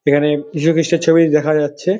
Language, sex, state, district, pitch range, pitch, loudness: Bengali, male, West Bengal, Dakshin Dinajpur, 150-165 Hz, 155 Hz, -15 LUFS